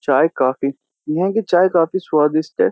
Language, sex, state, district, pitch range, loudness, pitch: Hindi, male, Uttar Pradesh, Jyotiba Phule Nagar, 150-190 Hz, -17 LUFS, 165 Hz